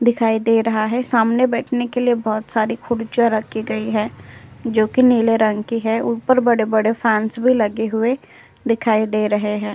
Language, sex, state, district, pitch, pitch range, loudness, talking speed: Hindi, female, Uttar Pradesh, Jyotiba Phule Nagar, 225 Hz, 220-235 Hz, -18 LUFS, 185 wpm